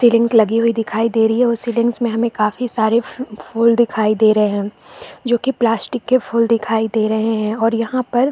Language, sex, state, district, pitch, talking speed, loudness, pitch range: Hindi, female, Chhattisgarh, Bastar, 230 Hz, 225 wpm, -16 LUFS, 220-240 Hz